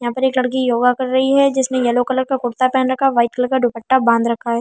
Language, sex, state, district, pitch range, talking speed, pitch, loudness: Hindi, female, Delhi, New Delhi, 240-260 Hz, 300 wpm, 255 Hz, -16 LUFS